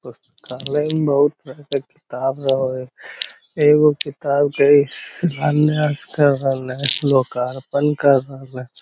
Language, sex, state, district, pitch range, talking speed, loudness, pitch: Magahi, male, Bihar, Lakhisarai, 130-150 Hz, 95 wpm, -18 LUFS, 140 Hz